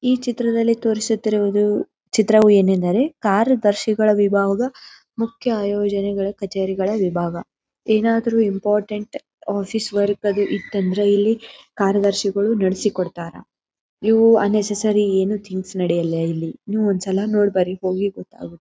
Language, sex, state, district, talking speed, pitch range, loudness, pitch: Kannada, female, Karnataka, Bijapur, 115 wpm, 195-220 Hz, -19 LUFS, 205 Hz